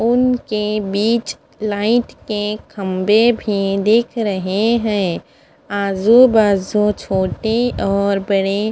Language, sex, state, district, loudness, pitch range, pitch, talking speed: Hindi, female, Punjab, Fazilka, -17 LUFS, 200-230 Hz, 210 Hz, 95 wpm